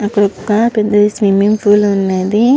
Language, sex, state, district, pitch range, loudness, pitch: Telugu, male, Andhra Pradesh, Visakhapatnam, 200-215 Hz, -12 LUFS, 205 Hz